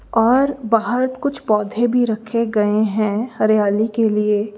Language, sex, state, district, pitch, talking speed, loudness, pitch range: Hindi, female, Uttar Pradesh, Lalitpur, 220 Hz, 145 wpm, -18 LUFS, 210-240 Hz